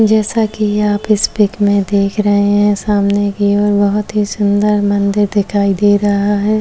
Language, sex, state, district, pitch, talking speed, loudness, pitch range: Hindi, female, Uttar Pradesh, Etah, 205 Hz, 180 wpm, -13 LUFS, 200-210 Hz